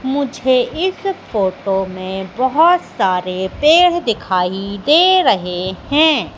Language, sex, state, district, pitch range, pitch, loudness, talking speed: Hindi, female, Madhya Pradesh, Katni, 190-315 Hz, 240 Hz, -15 LUFS, 105 wpm